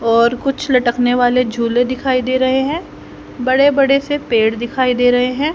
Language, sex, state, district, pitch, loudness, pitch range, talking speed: Hindi, female, Haryana, Rohtak, 255 Hz, -15 LUFS, 245-275 Hz, 185 wpm